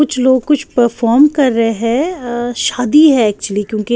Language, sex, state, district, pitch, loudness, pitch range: Hindi, female, Bihar, West Champaran, 245 Hz, -13 LUFS, 230-285 Hz